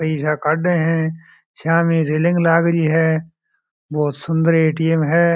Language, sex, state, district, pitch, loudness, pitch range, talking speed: Marwari, male, Rajasthan, Churu, 160 Hz, -17 LUFS, 155-165 Hz, 125 wpm